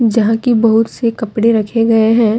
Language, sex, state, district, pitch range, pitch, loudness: Hindi, female, Jharkhand, Deoghar, 225-230 Hz, 225 Hz, -13 LUFS